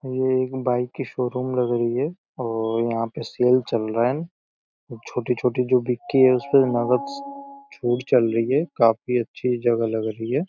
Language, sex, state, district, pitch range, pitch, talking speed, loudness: Hindi, male, Uttar Pradesh, Deoria, 115-130 Hz, 125 Hz, 190 wpm, -22 LUFS